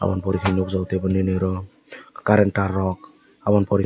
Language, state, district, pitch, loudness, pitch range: Kokborok, Tripura, West Tripura, 95 Hz, -22 LUFS, 95-100 Hz